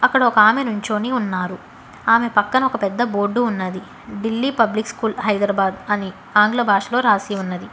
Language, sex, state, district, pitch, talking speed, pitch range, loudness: Telugu, female, Telangana, Hyderabad, 210 Hz, 145 wpm, 200-235 Hz, -19 LUFS